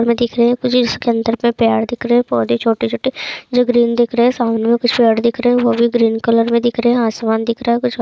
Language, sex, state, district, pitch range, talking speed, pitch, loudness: Hindi, female, Chhattisgarh, Raigarh, 230-240 Hz, 225 wpm, 235 Hz, -15 LUFS